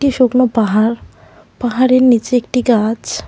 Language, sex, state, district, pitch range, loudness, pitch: Bengali, female, West Bengal, Cooch Behar, 230-255 Hz, -14 LUFS, 245 Hz